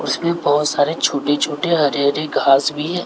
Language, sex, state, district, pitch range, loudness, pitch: Hindi, male, Bihar, West Champaran, 145-165 Hz, -17 LUFS, 150 Hz